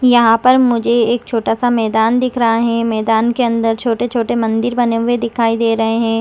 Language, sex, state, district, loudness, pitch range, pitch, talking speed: Hindi, female, Chhattisgarh, Raigarh, -14 LUFS, 225-240 Hz, 230 Hz, 205 wpm